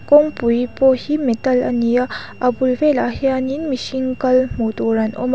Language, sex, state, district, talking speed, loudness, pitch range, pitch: Mizo, female, Mizoram, Aizawl, 200 wpm, -18 LUFS, 245-265 Hz, 255 Hz